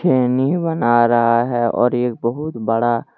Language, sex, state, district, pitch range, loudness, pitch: Hindi, male, Jharkhand, Deoghar, 120-125 Hz, -17 LUFS, 120 Hz